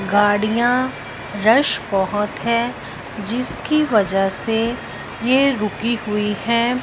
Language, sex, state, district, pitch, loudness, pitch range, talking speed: Hindi, female, Punjab, Fazilka, 225 Hz, -19 LUFS, 205-240 Hz, 95 wpm